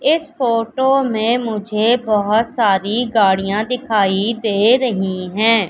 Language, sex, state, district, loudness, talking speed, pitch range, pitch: Hindi, female, Madhya Pradesh, Katni, -16 LUFS, 115 wpm, 205-245 Hz, 225 Hz